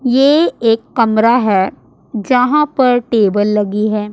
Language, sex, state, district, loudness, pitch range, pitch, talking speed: Hindi, female, Punjab, Pathankot, -13 LUFS, 210-255 Hz, 230 Hz, 130 wpm